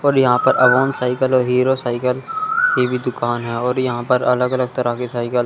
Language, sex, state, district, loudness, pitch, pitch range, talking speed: Hindi, male, Chandigarh, Chandigarh, -17 LUFS, 125 Hz, 125-130 Hz, 220 wpm